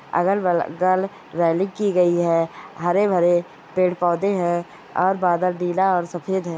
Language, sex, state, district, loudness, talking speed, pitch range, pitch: Hindi, female, Goa, North and South Goa, -21 LUFS, 155 wpm, 175-190 Hz, 180 Hz